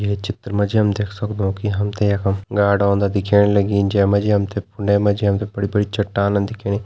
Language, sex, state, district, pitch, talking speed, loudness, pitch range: Garhwali, male, Uttarakhand, Tehri Garhwal, 100 Hz, 255 wpm, -19 LUFS, 100-105 Hz